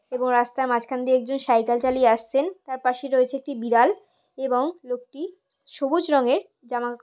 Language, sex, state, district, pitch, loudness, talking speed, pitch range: Bengali, female, West Bengal, Paschim Medinipur, 255 Hz, -23 LUFS, 160 wpm, 245-275 Hz